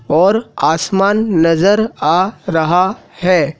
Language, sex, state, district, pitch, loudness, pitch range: Hindi, male, Madhya Pradesh, Dhar, 190 Hz, -14 LUFS, 170-205 Hz